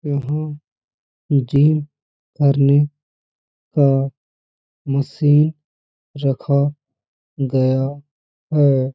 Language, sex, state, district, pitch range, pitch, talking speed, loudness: Hindi, male, Uttar Pradesh, Hamirpur, 135-145 Hz, 140 Hz, 60 wpm, -18 LUFS